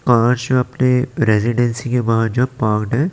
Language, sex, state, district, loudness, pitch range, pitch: Hindi, male, Chandigarh, Chandigarh, -17 LUFS, 115-125 Hz, 125 Hz